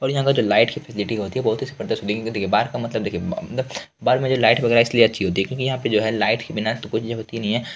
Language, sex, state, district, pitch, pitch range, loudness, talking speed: Hindi, male, Bihar, Lakhisarai, 110 Hz, 105-120 Hz, -21 LUFS, 300 wpm